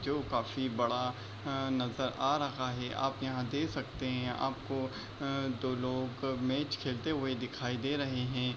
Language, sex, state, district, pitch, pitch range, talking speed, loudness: Hindi, male, Bihar, East Champaran, 130 Hz, 125-135 Hz, 155 wpm, -35 LUFS